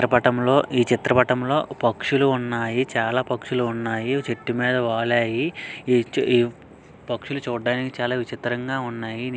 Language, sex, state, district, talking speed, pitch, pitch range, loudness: Telugu, male, Andhra Pradesh, Srikakulam, 110 wpm, 125 Hz, 120-130 Hz, -23 LUFS